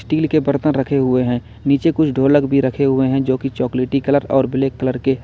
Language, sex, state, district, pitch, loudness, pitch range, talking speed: Hindi, male, Uttar Pradesh, Lalitpur, 135 Hz, -17 LUFS, 130-140 Hz, 250 wpm